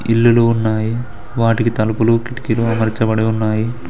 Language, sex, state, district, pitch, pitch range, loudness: Telugu, male, Telangana, Mahabubabad, 115 Hz, 110-115 Hz, -16 LUFS